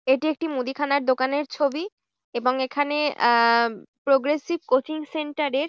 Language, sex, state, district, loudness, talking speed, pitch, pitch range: Bengali, female, West Bengal, Jhargram, -23 LUFS, 135 wpm, 280 Hz, 260-300 Hz